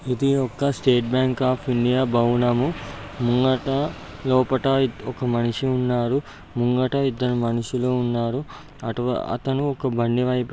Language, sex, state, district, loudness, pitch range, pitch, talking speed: Telugu, male, Andhra Pradesh, Guntur, -22 LUFS, 120-135 Hz, 125 Hz, 120 wpm